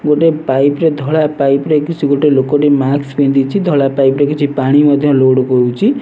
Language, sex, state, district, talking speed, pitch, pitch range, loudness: Odia, male, Odisha, Nuapada, 190 wpm, 145 Hz, 135-150 Hz, -12 LUFS